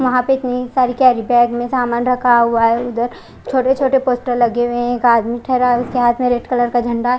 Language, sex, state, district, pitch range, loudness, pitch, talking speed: Hindi, female, Odisha, Khordha, 240-250 Hz, -15 LUFS, 245 Hz, 240 wpm